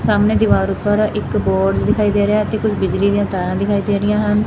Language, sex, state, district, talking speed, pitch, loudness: Punjabi, female, Punjab, Fazilka, 230 wpm, 200 Hz, -16 LUFS